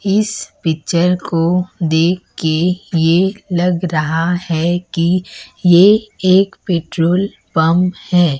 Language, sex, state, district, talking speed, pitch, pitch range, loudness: Hindi, female, Chhattisgarh, Raipur, 105 wpm, 175 Hz, 165-185 Hz, -15 LUFS